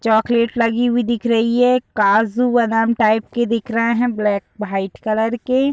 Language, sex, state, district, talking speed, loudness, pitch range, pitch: Hindi, female, Uttar Pradesh, Deoria, 190 wpm, -17 LUFS, 220-240 Hz, 230 Hz